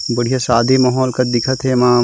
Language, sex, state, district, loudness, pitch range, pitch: Chhattisgarhi, male, Chhattisgarh, Raigarh, -15 LUFS, 120-130 Hz, 125 Hz